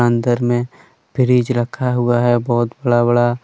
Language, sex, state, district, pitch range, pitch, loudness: Hindi, male, Jharkhand, Deoghar, 120-125 Hz, 120 Hz, -16 LUFS